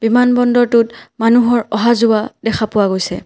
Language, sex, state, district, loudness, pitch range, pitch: Assamese, female, Assam, Kamrup Metropolitan, -14 LUFS, 215-240 Hz, 230 Hz